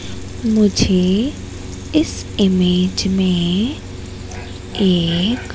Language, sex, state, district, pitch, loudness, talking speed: Hindi, female, Madhya Pradesh, Katni, 180 Hz, -17 LUFS, 55 wpm